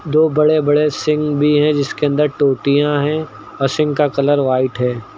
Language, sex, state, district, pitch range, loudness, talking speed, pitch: Hindi, male, Uttar Pradesh, Lucknow, 140-150 Hz, -16 LUFS, 185 wpm, 145 Hz